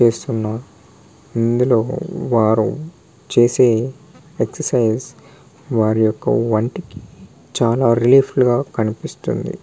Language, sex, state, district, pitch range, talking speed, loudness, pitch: Telugu, male, Telangana, Nalgonda, 110-130 Hz, 60 wpm, -17 LUFS, 120 Hz